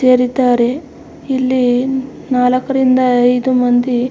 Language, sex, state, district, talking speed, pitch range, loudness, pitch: Kannada, female, Karnataka, Mysore, 75 wpm, 245-260 Hz, -14 LUFS, 255 Hz